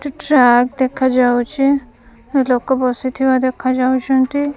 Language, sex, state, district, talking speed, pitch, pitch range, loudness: Odia, female, Odisha, Khordha, 90 wpm, 260 Hz, 250-270 Hz, -15 LUFS